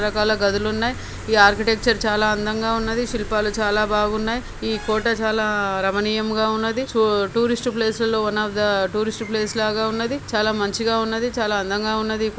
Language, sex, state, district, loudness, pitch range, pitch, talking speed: Telugu, male, Andhra Pradesh, Krishna, -21 LUFS, 210-225 Hz, 220 Hz, 160 wpm